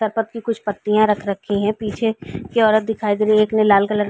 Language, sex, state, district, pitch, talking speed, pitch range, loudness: Hindi, female, Uttar Pradesh, Varanasi, 215 Hz, 280 wpm, 205-220 Hz, -18 LUFS